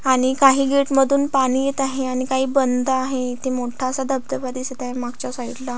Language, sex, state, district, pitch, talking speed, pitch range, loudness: Marathi, female, Maharashtra, Solapur, 260 Hz, 210 wpm, 255-270 Hz, -20 LUFS